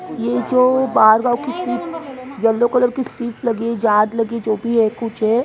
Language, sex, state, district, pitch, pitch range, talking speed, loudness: Hindi, female, Maharashtra, Mumbai Suburban, 235 Hz, 225-255 Hz, 175 wpm, -17 LUFS